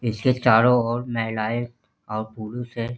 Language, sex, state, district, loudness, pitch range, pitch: Hindi, male, Bihar, Jahanabad, -23 LUFS, 110-125 Hz, 115 Hz